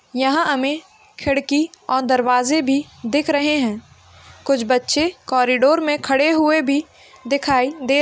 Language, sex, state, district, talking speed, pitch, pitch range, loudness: Hindi, female, Bihar, Saharsa, 140 wpm, 280 Hz, 260-305 Hz, -18 LUFS